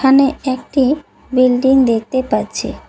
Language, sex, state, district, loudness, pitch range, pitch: Bengali, female, West Bengal, Cooch Behar, -15 LUFS, 255-270 Hz, 260 Hz